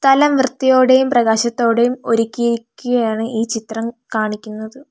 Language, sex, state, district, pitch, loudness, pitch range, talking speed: Malayalam, female, Kerala, Kollam, 235 Hz, -16 LUFS, 225-255 Hz, 85 wpm